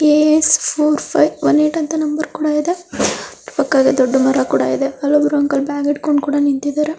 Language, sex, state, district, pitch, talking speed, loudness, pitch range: Kannada, female, Karnataka, Raichur, 295 Hz, 155 wpm, -16 LUFS, 280-305 Hz